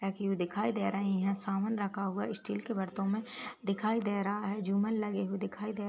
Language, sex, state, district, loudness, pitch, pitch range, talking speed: Hindi, female, Uttar Pradesh, Ghazipur, -34 LUFS, 205 Hz, 195-210 Hz, 235 wpm